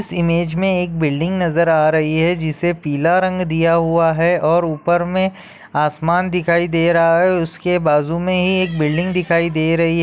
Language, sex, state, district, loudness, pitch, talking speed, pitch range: Hindi, male, Andhra Pradesh, Chittoor, -16 LUFS, 170 Hz, 140 wpm, 160-180 Hz